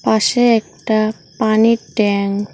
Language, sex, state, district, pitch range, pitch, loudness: Bengali, female, West Bengal, Cooch Behar, 200-220 Hz, 215 Hz, -16 LUFS